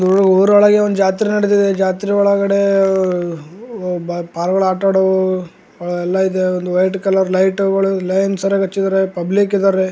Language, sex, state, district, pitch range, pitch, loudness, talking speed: Kannada, male, Karnataka, Gulbarga, 185-195 Hz, 190 Hz, -15 LUFS, 125 wpm